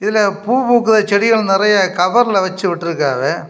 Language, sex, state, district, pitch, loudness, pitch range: Tamil, male, Tamil Nadu, Kanyakumari, 200 Hz, -14 LUFS, 185-220 Hz